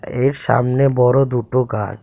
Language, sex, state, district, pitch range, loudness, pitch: Bengali, male, Tripura, West Tripura, 120-135 Hz, -17 LUFS, 125 Hz